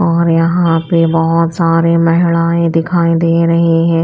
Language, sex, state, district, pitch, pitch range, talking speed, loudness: Hindi, female, Chhattisgarh, Raipur, 165 Hz, 165-170 Hz, 150 wpm, -12 LUFS